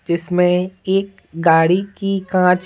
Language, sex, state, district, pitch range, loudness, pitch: Hindi, male, Bihar, Patna, 180-195 Hz, -17 LUFS, 180 Hz